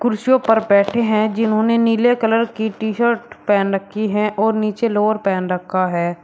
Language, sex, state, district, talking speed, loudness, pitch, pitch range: Hindi, male, Uttar Pradesh, Shamli, 175 wpm, -17 LUFS, 215 Hz, 200-230 Hz